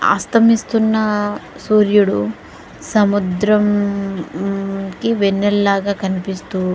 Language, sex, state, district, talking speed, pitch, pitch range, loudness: Telugu, female, Andhra Pradesh, Guntur, 55 wpm, 200 Hz, 195-210 Hz, -16 LUFS